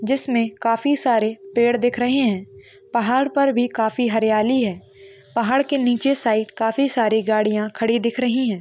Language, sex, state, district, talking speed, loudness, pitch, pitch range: Hindi, female, Maharashtra, Dhule, 165 wpm, -20 LUFS, 235 Hz, 220-260 Hz